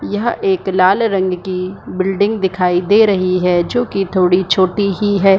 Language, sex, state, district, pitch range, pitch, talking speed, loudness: Hindi, female, Jharkhand, Sahebganj, 185-200 Hz, 190 Hz, 180 wpm, -15 LUFS